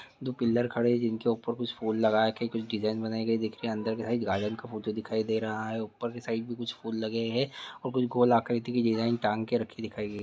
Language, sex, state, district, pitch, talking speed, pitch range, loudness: Hindi, male, Chhattisgarh, Bastar, 115 Hz, 260 wpm, 110-120 Hz, -30 LUFS